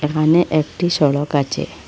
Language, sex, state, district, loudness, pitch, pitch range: Bengali, female, Assam, Hailakandi, -17 LUFS, 150 Hz, 145-165 Hz